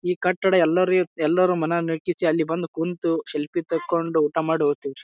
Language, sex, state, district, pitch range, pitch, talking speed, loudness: Kannada, male, Karnataka, Bijapur, 160-180 Hz, 165 Hz, 165 wpm, -22 LUFS